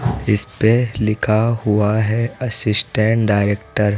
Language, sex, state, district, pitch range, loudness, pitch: Hindi, male, Rajasthan, Jaipur, 105-115 Hz, -17 LUFS, 110 Hz